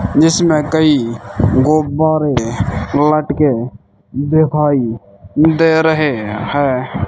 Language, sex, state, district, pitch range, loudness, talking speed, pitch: Hindi, male, Rajasthan, Bikaner, 115-155 Hz, -14 LUFS, 70 wpm, 145 Hz